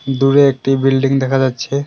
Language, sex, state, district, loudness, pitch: Bengali, male, West Bengal, Cooch Behar, -14 LUFS, 135 Hz